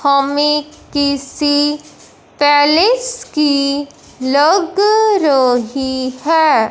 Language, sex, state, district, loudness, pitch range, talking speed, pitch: Hindi, male, Punjab, Fazilka, -14 LUFS, 275-315 Hz, 65 wpm, 290 Hz